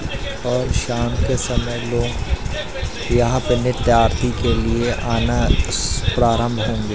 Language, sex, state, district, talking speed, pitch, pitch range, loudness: Hindi, male, Madhya Pradesh, Katni, 130 wpm, 115 Hz, 105-120 Hz, -20 LUFS